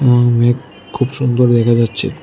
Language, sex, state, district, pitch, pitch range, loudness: Bengali, male, Tripura, West Tripura, 120 Hz, 120-125 Hz, -14 LUFS